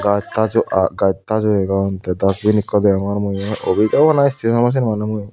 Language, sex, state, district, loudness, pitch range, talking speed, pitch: Chakma, female, Tripura, Unakoti, -17 LUFS, 100-110 Hz, 245 wpm, 105 Hz